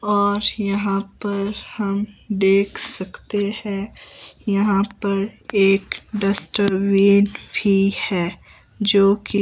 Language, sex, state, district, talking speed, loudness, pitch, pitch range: Hindi, male, Himachal Pradesh, Shimla, 100 wpm, -20 LUFS, 200 Hz, 195-205 Hz